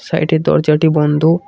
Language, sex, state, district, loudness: Bengali, male, West Bengal, Cooch Behar, -13 LUFS